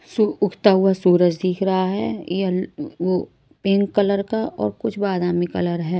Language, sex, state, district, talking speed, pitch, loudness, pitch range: Hindi, female, Maharashtra, Mumbai Suburban, 160 wpm, 185 Hz, -20 LUFS, 175-200 Hz